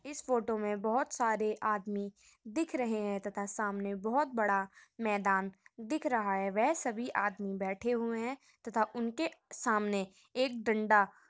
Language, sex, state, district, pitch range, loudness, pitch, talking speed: Hindi, female, Uttar Pradesh, Muzaffarnagar, 200-245 Hz, -34 LUFS, 220 Hz, 155 wpm